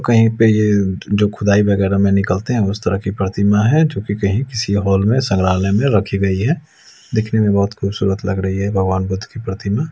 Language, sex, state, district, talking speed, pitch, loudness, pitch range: Hindi, male, Chhattisgarh, Raipur, 210 wpm, 100 Hz, -16 LUFS, 95-110 Hz